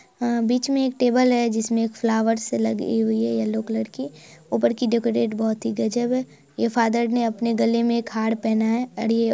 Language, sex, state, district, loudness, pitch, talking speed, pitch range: Hindi, male, Bihar, Araria, -22 LUFS, 230 Hz, 210 wpm, 220-235 Hz